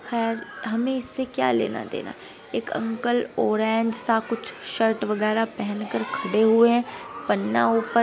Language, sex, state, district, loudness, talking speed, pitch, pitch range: Hindi, female, Uttar Pradesh, Etah, -24 LUFS, 150 wpm, 225 Hz, 220-235 Hz